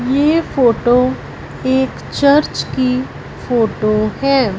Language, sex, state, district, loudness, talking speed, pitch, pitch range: Hindi, female, Punjab, Fazilka, -15 LUFS, 90 wpm, 245 Hz, 210-270 Hz